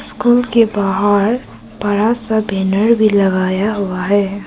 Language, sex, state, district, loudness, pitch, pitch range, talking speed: Hindi, male, Arunachal Pradesh, Papum Pare, -14 LUFS, 205 Hz, 195-220 Hz, 135 wpm